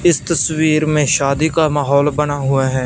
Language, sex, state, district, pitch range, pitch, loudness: Hindi, male, Punjab, Fazilka, 140-155 Hz, 150 Hz, -15 LUFS